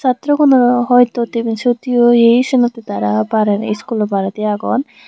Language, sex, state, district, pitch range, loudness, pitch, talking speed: Chakma, female, Tripura, Unakoti, 215-245 Hz, -14 LUFS, 235 Hz, 155 wpm